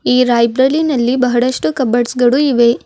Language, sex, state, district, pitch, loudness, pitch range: Kannada, female, Karnataka, Bidar, 250 Hz, -13 LUFS, 240-260 Hz